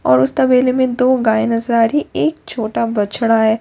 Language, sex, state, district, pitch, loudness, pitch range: Hindi, female, Bihar, Katihar, 230 Hz, -15 LUFS, 220-255 Hz